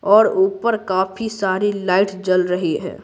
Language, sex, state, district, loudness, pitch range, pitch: Hindi, female, Bihar, Patna, -18 LUFS, 185-205 Hz, 195 Hz